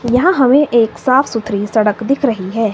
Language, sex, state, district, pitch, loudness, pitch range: Hindi, female, Himachal Pradesh, Shimla, 235 Hz, -14 LUFS, 220-265 Hz